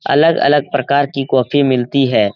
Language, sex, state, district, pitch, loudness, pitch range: Hindi, male, Bihar, Lakhisarai, 140 Hz, -14 LUFS, 130-145 Hz